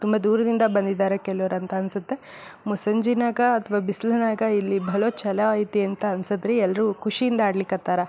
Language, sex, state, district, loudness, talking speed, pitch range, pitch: Kannada, female, Karnataka, Belgaum, -23 LUFS, 155 wpm, 195-225 Hz, 210 Hz